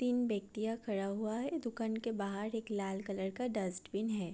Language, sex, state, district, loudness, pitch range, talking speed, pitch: Hindi, female, Bihar, Gopalganj, -38 LUFS, 200-230 Hz, 195 wpm, 215 Hz